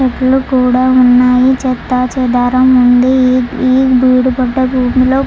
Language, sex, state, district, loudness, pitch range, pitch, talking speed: Telugu, female, Andhra Pradesh, Chittoor, -10 LUFS, 250-260 Hz, 255 Hz, 90 wpm